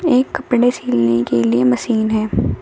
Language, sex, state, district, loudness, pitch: Hindi, female, Uttar Pradesh, Shamli, -16 LUFS, 215 Hz